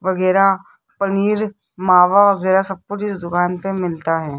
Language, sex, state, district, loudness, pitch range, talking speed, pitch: Hindi, female, Rajasthan, Jaipur, -17 LUFS, 180-200 Hz, 150 wpm, 190 Hz